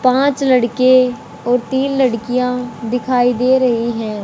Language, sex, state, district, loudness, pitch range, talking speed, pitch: Hindi, male, Haryana, Rohtak, -15 LUFS, 240-260 Hz, 125 wpm, 250 Hz